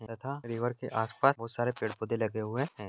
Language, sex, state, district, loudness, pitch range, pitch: Hindi, male, Jharkhand, Jamtara, -33 LUFS, 110-130 Hz, 115 Hz